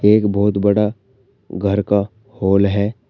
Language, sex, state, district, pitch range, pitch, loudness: Hindi, male, Uttar Pradesh, Shamli, 100-110 Hz, 100 Hz, -17 LUFS